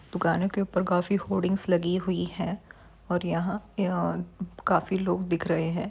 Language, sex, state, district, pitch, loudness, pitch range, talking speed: Hindi, female, Bihar, Saran, 180 Hz, -28 LUFS, 175-190 Hz, 155 wpm